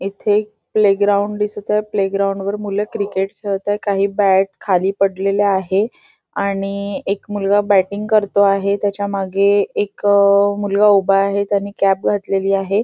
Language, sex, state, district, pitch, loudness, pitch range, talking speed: Marathi, female, Maharashtra, Nagpur, 200 Hz, -17 LUFS, 195-205 Hz, 165 wpm